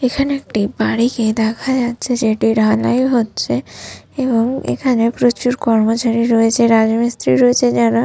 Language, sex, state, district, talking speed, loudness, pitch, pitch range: Bengali, female, West Bengal, Malda, 125 wpm, -15 LUFS, 230 Hz, 220-245 Hz